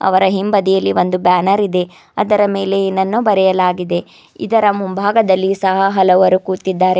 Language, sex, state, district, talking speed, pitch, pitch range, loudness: Kannada, female, Karnataka, Bidar, 120 wpm, 190 Hz, 185-200 Hz, -14 LUFS